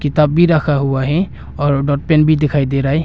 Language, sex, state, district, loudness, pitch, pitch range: Hindi, male, Arunachal Pradesh, Longding, -15 LUFS, 145 Hz, 140-155 Hz